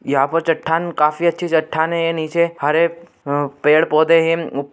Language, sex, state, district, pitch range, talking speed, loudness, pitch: Hindi, male, Bihar, Begusarai, 150-165 Hz, 165 wpm, -17 LUFS, 160 Hz